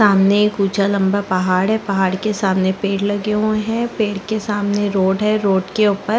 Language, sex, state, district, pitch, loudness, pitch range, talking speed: Hindi, female, Chhattisgarh, Sarguja, 205 Hz, -17 LUFS, 195-215 Hz, 205 wpm